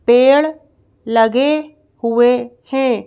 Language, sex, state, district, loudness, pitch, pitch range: Hindi, female, Madhya Pradesh, Bhopal, -15 LUFS, 255 Hz, 240-295 Hz